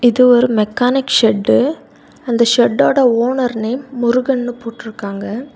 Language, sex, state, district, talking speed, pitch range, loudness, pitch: Tamil, female, Tamil Nadu, Kanyakumari, 120 wpm, 230-255 Hz, -14 LUFS, 245 Hz